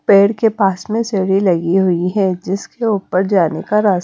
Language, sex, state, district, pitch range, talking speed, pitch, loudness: Hindi, female, Punjab, Kapurthala, 185-210 Hz, 195 wpm, 195 Hz, -15 LUFS